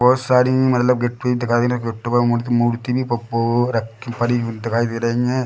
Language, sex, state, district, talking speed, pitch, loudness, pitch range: Hindi, male, Chhattisgarh, Bilaspur, 230 wpm, 120 Hz, -19 LUFS, 115-125 Hz